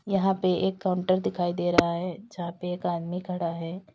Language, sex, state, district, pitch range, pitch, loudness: Hindi, female, Uttar Pradesh, Lalitpur, 170-185 Hz, 180 Hz, -27 LUFS